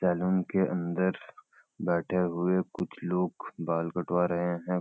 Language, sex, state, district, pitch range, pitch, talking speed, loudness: Hindi, male, Uttarakhand, Uttarkashi, 85-90 Hz, 90 Hz, 135 wpm, -30 LUFS